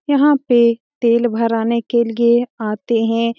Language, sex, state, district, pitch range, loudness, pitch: Hindi, female, Bihar, Jamui, 230-240 Hz, -16 LUFS, 235 Hz